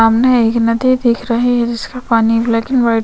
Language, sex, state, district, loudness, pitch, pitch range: Hindi, female, Chhattisgarh, Sukma, -14 LUFS, 235 Hz, 230-245 Hz